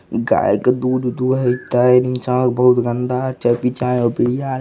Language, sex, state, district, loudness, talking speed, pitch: Maithili, male, Bihar, Begusarai, -17 LUFS, 115 wpm, 125 Hz